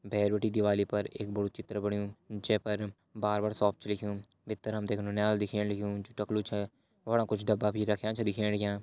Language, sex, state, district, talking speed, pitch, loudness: Hindi, male, Uttarakhand, Uttarkashi, 220 wpm, 105 Hz, -33 LUFS